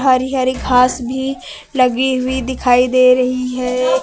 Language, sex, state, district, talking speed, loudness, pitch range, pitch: Hindi, female, Uttar Pradesh, Lucknow, 150 wpm, -15 LUFS, 250-260 Hz, 255 Hz